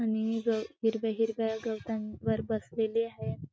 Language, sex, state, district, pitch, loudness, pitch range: Marathi, female, Maharashtra, Chandrapur, 225 Hz, -32 LUFS, 220-225 Hz